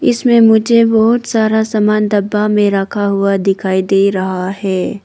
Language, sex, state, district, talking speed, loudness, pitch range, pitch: Hindi, female, Arunachal Pradesh, Papum Pare, 155 wpm, -13 LUFS, 195-220 Hz, 205 Hz